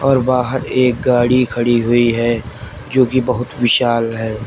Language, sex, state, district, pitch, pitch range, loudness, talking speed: Hindi, male, Uttar Pradesh, Lalitpur, 120 Hz, 115-130 Hz, -15 LUFS, 160 wpm